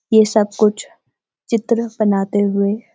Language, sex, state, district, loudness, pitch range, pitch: Hindi, female, Uttarakhand, Uttarkashi, -17 LUFS, 205-225 Hz, 215 Hz